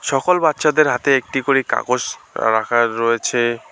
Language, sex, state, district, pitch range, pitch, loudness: Bengali, male, West Bengal, Alipurduar, 120-145 Hz, 135 Hz, -17 LUFS